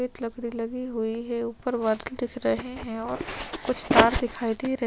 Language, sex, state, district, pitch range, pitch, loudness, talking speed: Hindi, female, Chhattisgarh, Sukma, 225-245 Hz, 235 Hz, -27 LUFS, 195 wpm